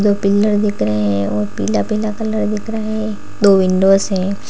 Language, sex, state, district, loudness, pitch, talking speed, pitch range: Hindi, female, Uttar Pradesh, Lalitpur, -16 LUFS, 200 Hz, 185 wpm, 185-215 Hz